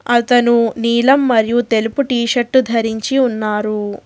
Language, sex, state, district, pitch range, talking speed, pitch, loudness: Telugu, female, Telangana, Hyderabad, 220-245 Hz, 120 wpm, 235 Hz, -15 LUFS